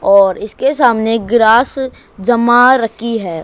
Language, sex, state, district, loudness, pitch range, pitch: Hindi, female, Haryana, Charkhi Dadri, -12 LUFS, 220-245 Hz, 230 Hz